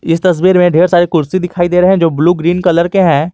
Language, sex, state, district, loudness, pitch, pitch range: Hindi, male, Jharkhand, Garhwa, -11 LUFS, 175 Hz, 170-180 Hz